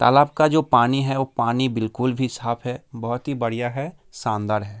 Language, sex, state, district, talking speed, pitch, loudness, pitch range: Hindi, male, Bihar, Kishanganj, 235 wpm, 125 Hz, -22 LUFS, 115-135 Hz